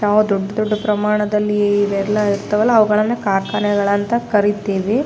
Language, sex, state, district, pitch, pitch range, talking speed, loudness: Kannada, female, Karnataka, Raichur, 210 Hz, 205-210 Hz, 105 wpm, -17 LUFS